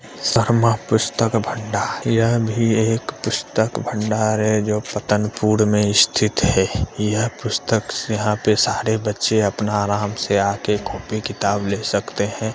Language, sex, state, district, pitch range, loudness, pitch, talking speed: Hindi, male, Bihar, Jamui, 105-110 Hz, -19 LUFS, 105 Hz, 145 wpm